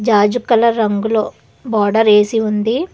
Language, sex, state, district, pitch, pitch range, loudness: Telugu, female, Telangana, Hyderabad, 220 Hz, 210-230 Hz, -14 LUFS